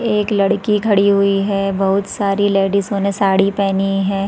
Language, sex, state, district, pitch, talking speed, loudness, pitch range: Hindi, female, Chhattisgarh, Raigarh, 200 Hz, 180 wpm, -16 LUFS, 195-200 Hz